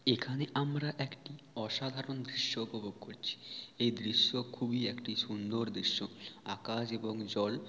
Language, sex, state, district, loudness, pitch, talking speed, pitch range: Bengali, male, West Bengal, Paschim Medinipur, -36 LUFS, 120 Hz, 125 wpm, 110-135 Hz